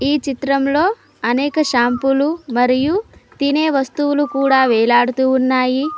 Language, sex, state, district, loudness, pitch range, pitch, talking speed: Telugu, female, Telangana, Mahabubabad, -16 LUFS, 255-290 Hz, 275 Hz, 110 wpm